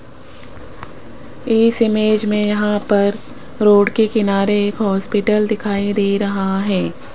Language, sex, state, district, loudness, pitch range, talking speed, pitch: Hindi, female, Rajasthan, Jaipur, -16 LUFS, 200-215 Hz, 120 wpm, 210 Hz